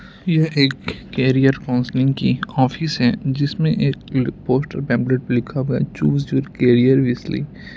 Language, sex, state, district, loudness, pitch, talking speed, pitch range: Hindi, male, Punjab, Kapurthala, -19 LUFS, 130 Hz, 140 wpm, 125-140 Hz